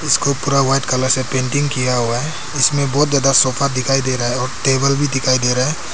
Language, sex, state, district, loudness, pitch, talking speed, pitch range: Hindi, male, Arunachal Pradesh, Papum Pare, -16 LUFS, 135 Hz, 240 wpm, 130-140 Hz